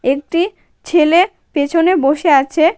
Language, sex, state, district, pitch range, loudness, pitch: Bengali, female, West Bengal, Cooch Behar, 285-350 Hz, -14 LUFS, 325 Hz